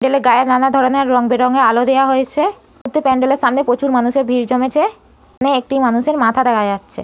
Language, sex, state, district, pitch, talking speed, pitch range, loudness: Bengali, female, West Bengal, North 24 Parganas, 260 Hz, 205 wpm, 245-270 Hz, -14 LUFS